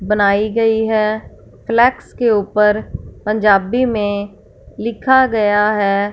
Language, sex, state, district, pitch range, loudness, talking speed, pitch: Hindi, female, Punjab, Fazilka, 205-230 Hz, -15 LUFS, 110 wpm, 215 Hz